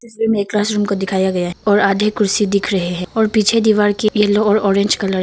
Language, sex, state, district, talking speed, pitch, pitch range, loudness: Hindi, female, Arunachal Pradesh, Papum Pare, 250 wpm, 205 Hz, 195-215 Hz, -16 LUFS